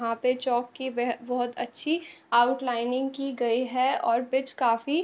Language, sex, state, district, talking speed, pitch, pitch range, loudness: Hindi, female, Uttarakhand, Tehri Garhwal, 180 wpm, 250 Hz, 240-265 Hz, -27 LUFS